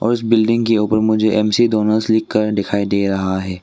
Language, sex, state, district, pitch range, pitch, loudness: Hindi, male, Arunachal Pradesh, Longding, 100-110 Hz, 110 Hz, -16 LUFS